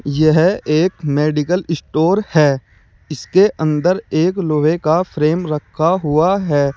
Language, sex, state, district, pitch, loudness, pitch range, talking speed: Hindi, male, Uttar Pradesh, Saharanpur, 155 Hz, -16 LUFS, 150-180 Hz, 125 wpm